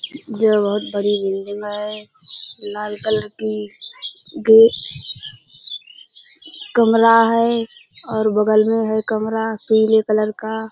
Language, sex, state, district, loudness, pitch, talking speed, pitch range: Hindi, female, Uttar Pradesh, Budaun, -18 LUFS, 220 Hz, 105 wpm, 205-225 Hz